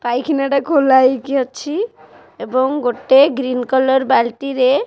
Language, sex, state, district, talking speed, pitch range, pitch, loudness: Odia, female, Odisha, Khordha, 150 wpm, 255-275 Hz, 265 Hz, -15 LUFS